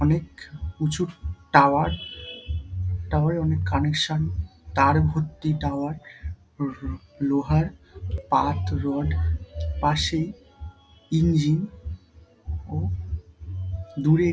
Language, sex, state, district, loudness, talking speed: Bengali, male, West Bengal, Dakshin Dinajpur, -25 LUFS, 90 wpm